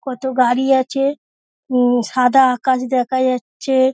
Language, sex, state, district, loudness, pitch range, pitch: Bengali, female, West Bengal, Dakshin Dinajpur, -17 LUFS, 250-265 Hz, 260 Hz